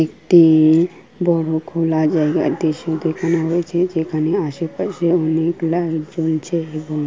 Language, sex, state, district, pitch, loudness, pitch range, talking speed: Bengali, female, West Bengal, Kolkata, 165 Hz, -18 LUFS, 160-170 Hz, 110 wpm